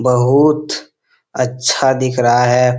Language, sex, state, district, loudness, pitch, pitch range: Hindi, male, Bihar, Supaul, -14 LUFS, 125 Hz, 125-130 Hz